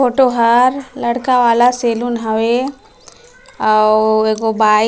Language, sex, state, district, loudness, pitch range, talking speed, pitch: Chhattisgarhi, female, Chhattisgarh, Raigarh, -14 LUFS, 220-255 Hz, 125 wpm, 235 Hz